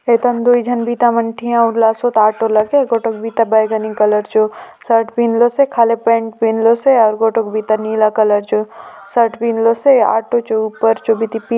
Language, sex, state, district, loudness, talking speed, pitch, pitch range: Halbi, female, Chhattisgarh, Bastar, -14 LUFS, 175 wpm, 225 Hz, 220-235 Hz